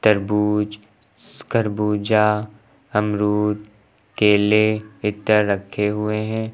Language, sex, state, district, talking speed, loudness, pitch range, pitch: Hindi, male, Uttar Pradesh, Lucknow, 80 wpm, -20 LUFS, 105-110 Hz, 105 Hz